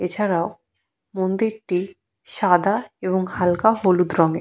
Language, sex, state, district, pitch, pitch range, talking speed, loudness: Bengali, female, West Bengal, Purulia, 185 Hz, 180-205 Hz, 95 wpm, -21 LUFS